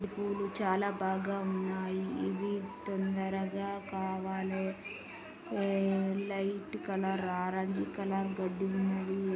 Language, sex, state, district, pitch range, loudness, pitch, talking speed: Telugu, female, Andhra Pradesh, Srikakulam, 190-200 Hz, -35 LUFS, 195 Hz, 85 wpm